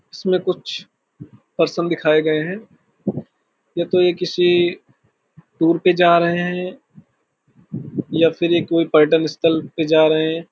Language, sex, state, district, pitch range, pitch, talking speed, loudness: Hindi, male, Uttar Pradesh, Hamirpur, 160-180 Hz, 170 Hz, 135 wpm, -18 LUFS